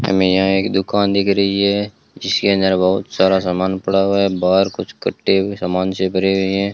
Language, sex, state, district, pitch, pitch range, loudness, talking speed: Hindi, male, Rajasthan, Bikaner, 95 Hz, 95-100 Hz, -17 LUFS, 215 wpm